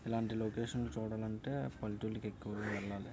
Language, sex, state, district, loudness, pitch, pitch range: Telugu, male, Andhra Pradesh, Visakhapatnam, -41 LUFS, 110 Hz, 105-115 Hz